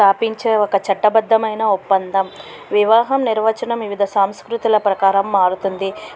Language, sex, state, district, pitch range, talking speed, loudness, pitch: Telugu, female, Andhra Pradesh, Krishna, 195-220 Hz, 105 wpm, -17 LUFS, 205 Hz